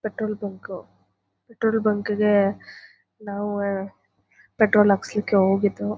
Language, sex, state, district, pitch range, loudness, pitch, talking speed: Kannada, female, Karnataka, Chamarajanagar, 200-215 Hz, -22 LUFS, 210 Hz, 100 wpm